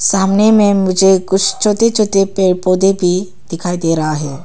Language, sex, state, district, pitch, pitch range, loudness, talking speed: Hindi, female, Arunachal Pradesh, Papum Pare, 190 Hz, 180-200 Hz, -13 LUFS, 175 wpm